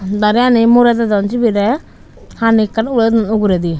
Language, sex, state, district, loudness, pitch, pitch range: Chakma, female, Tripura, Unakoti, -13 LUFS, 225 Hz, 205-235 Hz